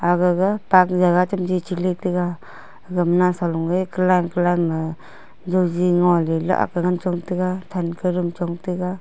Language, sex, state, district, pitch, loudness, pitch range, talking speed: Wancho, female, Arunachal Pradesh, Longding, 180 Hz, -20 LUFS, 175-185 Hz, 155 wpm